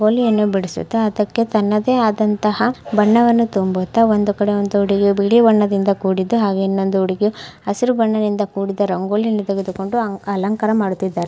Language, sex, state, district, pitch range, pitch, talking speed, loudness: Kannada, female, Karnataka, Mysore, 195-220 Hz, 205 Hz, 130 wpm, -17 LUFS